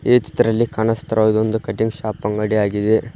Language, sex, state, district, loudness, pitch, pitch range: Kannada, male, Karnataka, Koppal, -18 LUFS, 110 Hz, 105-115 Hz